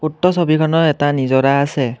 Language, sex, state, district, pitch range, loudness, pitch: Assamese, male, Assam, Kamrup Metropolitan, 135-155 Hz, -15 LUFS, 145 Hz